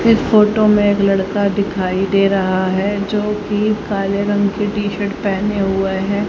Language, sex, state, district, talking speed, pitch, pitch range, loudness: Hindi, female, Haryana, Charkhi Dadri, 170 wpm, 200 Hz, 195-210 Hz, -16 LUFS